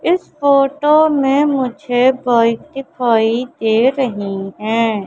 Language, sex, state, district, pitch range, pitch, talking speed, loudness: Hindi, female, Madhya Pradesh, Katni, 225-275 Hz, 250 Hz, 105 wpm, -15 LUFS